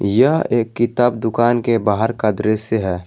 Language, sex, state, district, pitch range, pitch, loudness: Hindi, male, Jharkhand, Garhwa, 105-120 Hz, 115 Hz, -17 LUFS